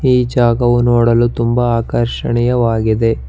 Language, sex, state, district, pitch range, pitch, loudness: Kannada, male, Karnataka, Bangalore, 115-120 Hz, 120 Hz, -14 LUFS